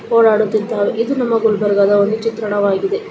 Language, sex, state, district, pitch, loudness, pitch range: Kannada, female, Karnataka, Gulbarga, 220 Hz, -15 LUFS, 205-230 Hz